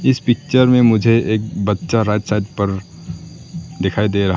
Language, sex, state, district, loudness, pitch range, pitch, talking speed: Hindi, male, Arunachal Pradesh, Lower Dibang Valley, -16 LUFS, 100-115 Hz, 105 Hz, 180 wpm